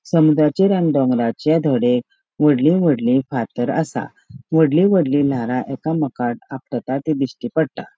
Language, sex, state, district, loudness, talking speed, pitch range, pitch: Konkani, female, Goa, North and South Goa, -18 LUFS, 120 wpm, 125-160 Hz, 140 Hz